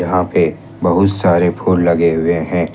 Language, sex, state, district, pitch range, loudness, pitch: Hindi, male, Jharkhand, Ranchi, 85-90 Hz, -14 LUFS, 85 Hz